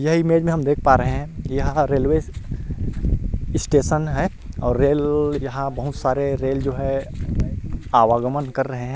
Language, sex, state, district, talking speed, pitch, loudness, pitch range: Hindi, male, Chhattisgarh, Rajnandgaon, 160 wpm, 135 Hz, -21 LUFS, 130-145 Hz